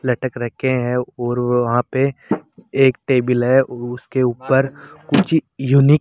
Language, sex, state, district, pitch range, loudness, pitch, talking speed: Hindi, male, Rajasthan, Jaipur, 125-135 Hz, -18 LUFS, 130 Hz, 150 wpm